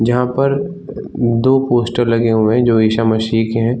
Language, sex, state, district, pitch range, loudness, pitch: Hindi, male, Chhattisgarh, Bilaspur, 115-125 Hz, -15 LUFS, 120 Hz